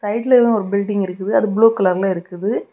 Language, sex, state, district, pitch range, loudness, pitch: Tamil, female, Tamil Nadu, Kanyakumari, 190-220 Hz, -17 LUFS, 205 Hz